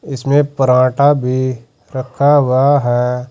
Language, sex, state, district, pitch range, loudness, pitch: Hindi, male, Uttar Pradesh, Saharanpur, 125-140 Hz, -13 LUFS, 130 Hz